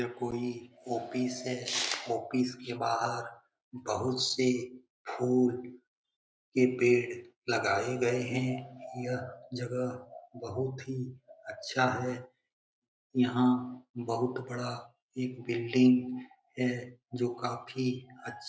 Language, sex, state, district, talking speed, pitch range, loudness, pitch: Hindi, male, Bihar, Jamui, 100 wpm, 120-125 Hz, -32 LUFS, 125 Hz